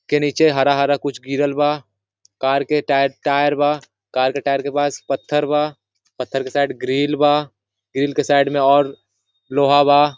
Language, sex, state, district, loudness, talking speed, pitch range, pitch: Hindi, male, Jharkhand, Sahebganj, -18 LUFS, 185 wpm, 135-145 Hz, 140 Hz